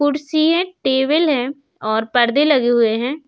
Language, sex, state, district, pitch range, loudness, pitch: Hindi, female, Uttar Pradesh, Budaun, 240-305 Hz, -17 LUFS, 280 Hz